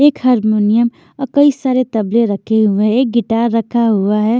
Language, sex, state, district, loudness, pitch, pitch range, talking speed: Hindi, female, Maharashtra, Washim, -14 LUFS, 235 Hz, 215-255 Hz, 190 wpm